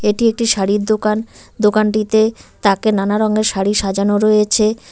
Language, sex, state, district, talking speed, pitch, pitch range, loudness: Bengali, female, West Bengal, Cooch Behar, 135 wpm, 215 Hz, 205-215 Hz, -15 LUFS